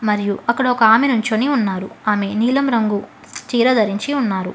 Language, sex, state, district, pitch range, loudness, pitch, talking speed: Telugu, female, Telangana, Hyderabad, 205-250 Hz, -17 LUFS, 220 Hz, 160 wpm